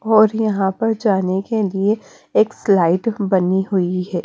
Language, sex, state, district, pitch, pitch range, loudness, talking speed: Hindi, female, Punjab, Kapurthala, 195 Hz, 190-220 Hz, -18 LUFS, 155 wpm